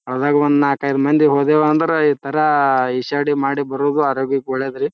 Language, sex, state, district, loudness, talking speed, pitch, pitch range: Kannada, male, Karnataka, Bijapur, -17 LUFS, 170 wpm, 145 Hz, 135-150 Hz